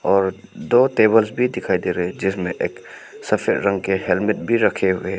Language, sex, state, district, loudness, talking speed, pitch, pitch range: Hindi, male, Arunachal Pradesh, Papum Pare, -19 LUFS, 210 wpm, 95 Hz, 90-105 Hz